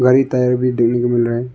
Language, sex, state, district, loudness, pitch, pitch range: Hindi, male, Arunachal Pradesh, Longding, -16 LUFS, 125 Hz, 120-125 Hz